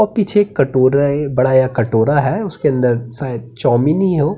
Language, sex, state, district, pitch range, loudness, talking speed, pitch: Hindi, male, Uttarakhand, Tehri Garhwal, 125-155 Hz, -15 LUFS, 220 wpm, 140 Hz